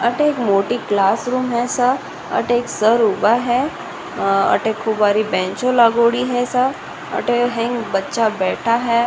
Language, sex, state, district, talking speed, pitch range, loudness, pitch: Rajasthani, female, Rajasthan, Nagaur, 150 wpm, 215-245 Hz, -17 LUFS, 235 Hz